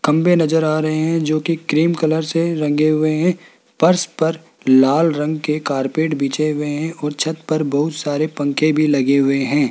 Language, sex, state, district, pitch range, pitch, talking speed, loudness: Hindi, male, Rajasthan, Jaipur, 150-160 Hz, 155 Hz, 200 wpm, -17 LUFS